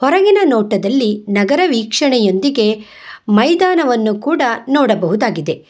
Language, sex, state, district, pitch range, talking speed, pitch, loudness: Kannada, female, Karnataka, Bangalore, 210-285 Hz, 75 wpm, 230 Hz, -14 LUFS